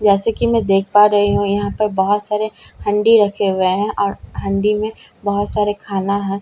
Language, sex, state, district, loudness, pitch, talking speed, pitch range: Hindi, female, Bihar, Katihar, -17 LUFS, 205 Hz, 245 wpm, 200-210 Hz